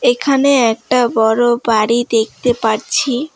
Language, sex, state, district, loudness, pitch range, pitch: Bengali, female, West Bengal, Alipurduar, -14 LUFS, 225-265 Hz, 240 Hz